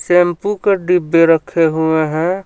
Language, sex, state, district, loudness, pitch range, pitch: Hindi, male, Jharkhand, Ranchi, -14 LUFS, 160-180 Hz, 175 Hz